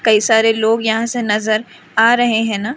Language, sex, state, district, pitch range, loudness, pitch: Hindi, female, Madhya Pradesh, Umaria, 220-230 Hz, -15 LUFS, 225 Hz